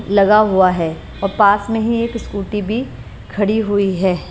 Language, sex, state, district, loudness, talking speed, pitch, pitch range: Hindi, female, Punjab, Pathankot, -16 LUFS, 180 wpm, 205 Hz, 195-215 Hz